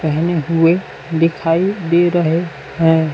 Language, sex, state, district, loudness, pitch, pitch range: Hindi, male, Chhattisgarh, Raipur, -16 LUFS, 165 Hz, 160-175 Hz